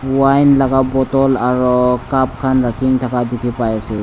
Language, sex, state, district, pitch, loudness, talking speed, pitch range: Nagamese, male, Nagaland, Dimapur, 130 Hz, -15 LUFS, 165 wpm, 125-135 Hz